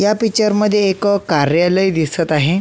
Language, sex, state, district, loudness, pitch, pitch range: Marathi, male, Maharashtra, Solapur, -15 LUFS, 190 Hz, 165-210 Hz